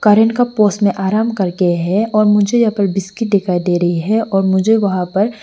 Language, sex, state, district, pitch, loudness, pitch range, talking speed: Hindi, female, Arunachal Pradesh, Lower Dibang Valley, 200 Hz, -15 LUFS, 190-215 Hz, 190 wpm